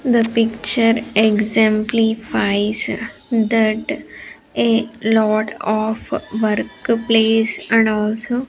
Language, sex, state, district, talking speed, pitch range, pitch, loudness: English, female, Andhra Pradesh, Sri Satya Sai, 80 wpm, 215-230 Hz, 225 Hz, -17 LUFS